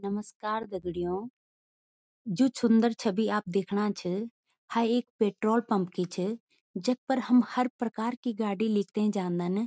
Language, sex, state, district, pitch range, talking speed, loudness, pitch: Garhwali, female, Uttarakhand, Tehri Garhwal, 195-235 Hz, 145 wpm, -29 LUFS, 215 Hz